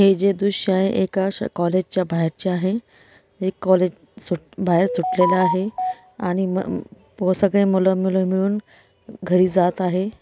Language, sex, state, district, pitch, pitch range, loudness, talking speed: Marathi, female, Maharashtra, Dhule, 190 Hz, 185-195 Hz, -21 LUFS, 140 wpm